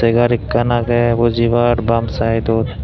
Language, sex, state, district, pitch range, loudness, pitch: Chakma, male, Tripura, Dhalai, 115-120 Hz, -15 LUFS, 115 Hz